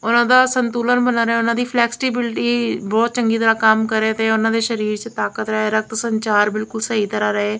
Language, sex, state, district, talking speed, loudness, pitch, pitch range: Punjabi, female, Punjab, Kapurthala, 205 wpm, -18 LUFS, 225 Hz, 215-235 Hz